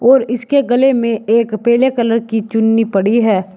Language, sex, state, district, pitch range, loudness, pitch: Hindi, male, Uttar Pradesh, Shamli, 220-245 Hz, -14 LUFS, 230 Hz